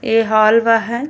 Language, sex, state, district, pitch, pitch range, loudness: Bhojpuri, female, Uttar Pradesh, Ghazipur, 225 Hz, 225-235 Hz, -13 LUFS